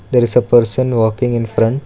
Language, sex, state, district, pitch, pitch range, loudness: English, male, Karnataka, Bangalore, 120 Hz, 115-125 Hz, -13 LUFS